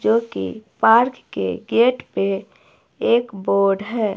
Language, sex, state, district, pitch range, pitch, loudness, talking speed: Hindi, female, Himachal Pradesh, Shimla, 195-235 Hz, 220 Hz, -19 LUFS, 130 wpm